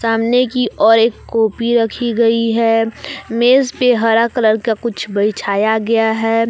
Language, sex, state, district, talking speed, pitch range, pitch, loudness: Hindi, female, Jharkhand, Palamu, 155 wpm, 225-235 Hz, 225 Hz, -15 LUFS